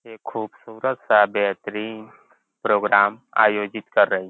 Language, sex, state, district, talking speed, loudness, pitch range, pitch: Hindi, male, Uttar Pradesh, Ghazipur, 125 wpm, -21 LUFS, 105-110 Hz, 105 Hz